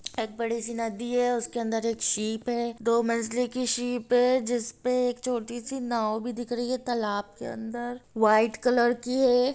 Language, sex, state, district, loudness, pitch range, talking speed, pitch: Hindi, female, Bihar, Sitamarhi, -27 LUFS, 230-245 Hz, 180 wpm, 240 Hz